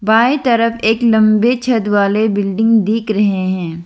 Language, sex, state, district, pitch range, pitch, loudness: Hindi, female, Arunachal Pradesh, Lower Dibang Valley, 205-230 Hz, 220 Hz, -14 LUFS